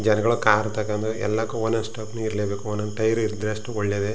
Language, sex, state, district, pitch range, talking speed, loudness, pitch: Kannada, male, Karnataka, Chamarajanagar, 105-110 Hz, 185 wpm, -24 LUFS, 110 Hz